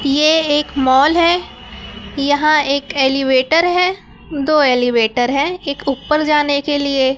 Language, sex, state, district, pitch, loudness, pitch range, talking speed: Hindi, male, Chhattisgarh, Raipur, 285 Hz, -15 LUFS, 270-305 Hz, 140 wpm